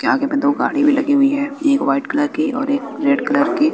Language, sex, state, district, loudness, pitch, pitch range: Hindi, male, Bihar, West Champaran, -17 LUFS, 285 Hz, 280-290 Hz